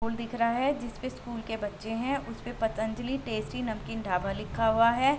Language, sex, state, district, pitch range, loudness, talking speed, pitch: Hindi, female, Bihar, Gopalganj, 220-245 Hz, -31 LUFS, 220 wpm, 230 Hz